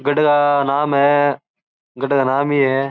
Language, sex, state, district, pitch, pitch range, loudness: Marwari, male, Rajasthan, Churu, 140 Hz, 140-145 Hz, -16 LUFS